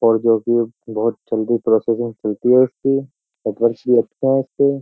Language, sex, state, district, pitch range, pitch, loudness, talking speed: Hindi, male, Uttar Pradesh, Jyotiba Phule Nagar, 115-130 Hz, 115 Hz, -18 LUFS, 185 wpm